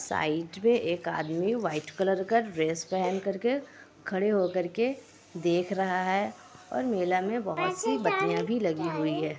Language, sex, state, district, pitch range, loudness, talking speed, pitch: Hindi, female, Bihar, Kishanganj, 170-230 Hz, -29 LUFS, 180 wpm, 190 Hz